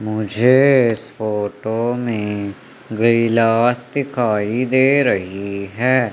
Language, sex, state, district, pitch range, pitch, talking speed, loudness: Hindi, male, Madhya Pradesh, Umaria, 105-125 Hz, 115 Hz, 80 wpm, -17 LUFS